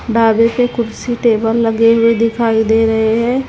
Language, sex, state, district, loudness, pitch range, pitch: Hindi, female, Chhattisgarh, Raipur, -13 LUFS, 225-235 Hz, 230 Hz